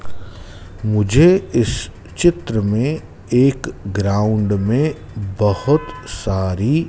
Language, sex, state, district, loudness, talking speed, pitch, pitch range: Hindi, male, Madhya Pradesh, Dhar, -18 LUFS, 80 wpm, 105 Hz, 95-120 Hz